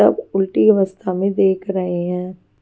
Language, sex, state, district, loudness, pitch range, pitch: Hindi, female, Maharashtra, Washim, -18 LUFS, 185-195 Hz, 190 Hz